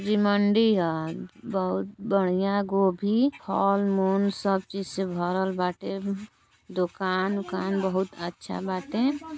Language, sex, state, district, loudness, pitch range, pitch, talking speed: Bhojpuri, female, Uttar Pradesh, Gorakhpur, -26 LUFS, 185-200 Hz, 195 Hz, 115 wpm